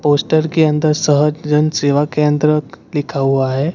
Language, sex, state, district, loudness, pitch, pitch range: Hindi, male, Gujarat, Gandhinagar, -15 LUFS, 150 Hz, 145-155 Hz